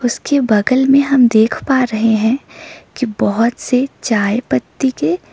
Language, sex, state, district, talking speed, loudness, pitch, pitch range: Hindi, female, Sikkim, Gangtok, 155 wpm, -15 LUFS, 245 Hz, 225-265 Hz